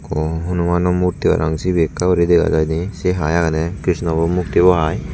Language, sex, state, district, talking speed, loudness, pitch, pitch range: Chakma, male, Tripura, Dhalai, 200 wpm, -17 LUFS, 85 Hz, 80-90 Hz